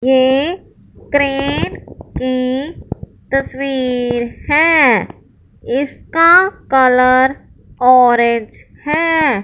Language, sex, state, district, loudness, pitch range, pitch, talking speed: Hindi, male, Punjab, Fazilka, -14 LUFS, 250-295 Hz, 265 Hz, 55 wpm